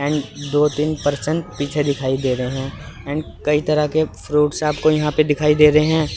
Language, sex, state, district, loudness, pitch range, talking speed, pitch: Hindi, male, Chandigarh, Chandigarh, -19 LUFS, 145-150 Hz, 205 wpm, 150 Hz